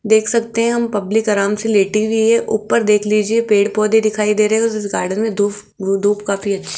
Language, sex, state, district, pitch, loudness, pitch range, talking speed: Hindi, female, Rajasthan, Jaipur, 215 Hz, -16 LUFS, 205-220 Hz, 220 wpm